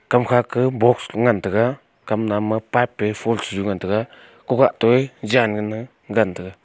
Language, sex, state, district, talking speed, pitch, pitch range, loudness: Wancho, male, Arunachal Pradesh, Longding, 180 wpm, 110 Hz, 105-120 Hz, -20 LUFS